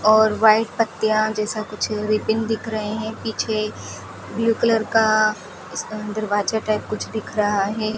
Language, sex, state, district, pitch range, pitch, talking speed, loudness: Hindi, female, Rajasthan, Bikaner, 215-220 Hz, 215 Hz, 145 wpm, -21 LUFS